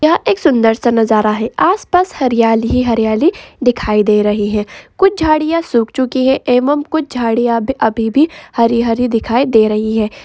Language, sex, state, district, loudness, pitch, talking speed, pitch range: Hindi, female, Bihar, Araria, -13 LUFS, 240 Hz, 175 wpm, 225-290 Hz